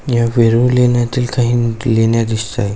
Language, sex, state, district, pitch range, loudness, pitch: Marathi, male, Maharashtra, Aurangabad, 115-120 Hz, -14 LUFS, 115 Hz